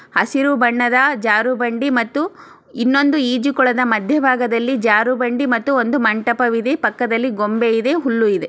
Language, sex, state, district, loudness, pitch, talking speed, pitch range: Kannada, female, Karnataka, Chamarajanagar, -16 LUFS, 250 Hz, 140 wpm, 230-270 Hz